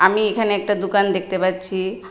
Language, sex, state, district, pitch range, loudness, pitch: Bengali, female, Tripura, West Tripura, 185-205 Hz, -20 LUFS, 195 Hz